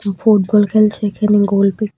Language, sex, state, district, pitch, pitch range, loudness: Bengali, female, Tripura, West Tripura, 210 Hz, 200-215 Hz, -14 LUFS